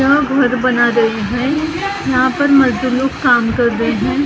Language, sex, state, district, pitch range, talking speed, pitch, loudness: Hindi, female, Maharashtra, Gondia, 245-280 Hz, 195 wpm, 255 Hz, -14 LUFS